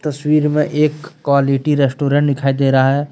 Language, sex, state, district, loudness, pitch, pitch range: Hindi, male, Jharkhand, Deoghar, -15 LUFS, 145 Hz, 135-150 Hz